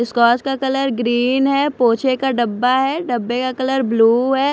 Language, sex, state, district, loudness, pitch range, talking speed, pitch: Hindi, female, Chandigarh, Chandigarh, -17 LUFS, 240-270 Hz, 170 wpm, 255 Hz